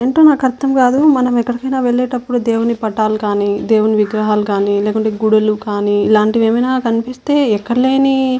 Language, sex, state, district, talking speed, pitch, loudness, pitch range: Telugu, female, Andhra Pradesh, Anantapur, 150 wpm, 230 Hz, -14 LUFS, 215-255 Hz